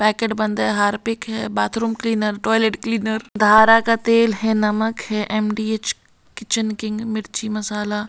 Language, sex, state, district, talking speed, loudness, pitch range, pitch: Hindi, female, Bihar, Katihar, 165 wpm, -19 LUFS, 210-225 Hz, 220 Hz